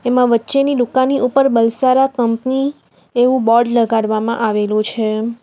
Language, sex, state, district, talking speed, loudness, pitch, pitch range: Gujarati, female, Gujarat, Valsad, 120 wpm, -15 LUFS, 240 Hz, 230-260 Hz